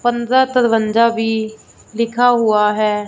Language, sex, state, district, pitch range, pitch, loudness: Hindi, female, Punjab, Fazilka, 215-240 Hz, 225 Hz, -15 LUFS